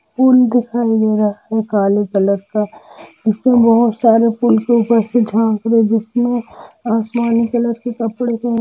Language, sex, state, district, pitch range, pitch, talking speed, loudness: Hindi, female, Jharkhand, Jamtara, 220-240 Hz, 230 Hz, 160 wpm, -15 LUFS